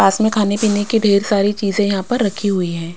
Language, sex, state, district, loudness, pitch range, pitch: Hindi, female, Punjab, Kapurthala, -16 LUFS, 195-215 Hz, 205 Hz